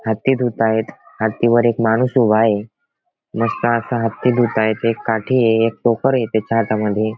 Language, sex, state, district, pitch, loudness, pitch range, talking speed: Marathi, male, Maharashtra, Pune, 115 Hz, -17 LUFS, 110-120 Hz, 165 wpm